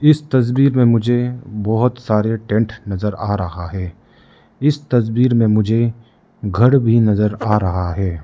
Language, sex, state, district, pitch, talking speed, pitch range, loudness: Hindi, male, Arunachal Pradesh, Lower Dibang Valley, 110 Hz, 155 wpm, 105-125 Hz, -17 LUFS